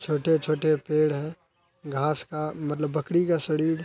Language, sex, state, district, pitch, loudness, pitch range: Hindi, male, Bihar, Araria, 155 Hz, -26 LUFS, 150-165 Hz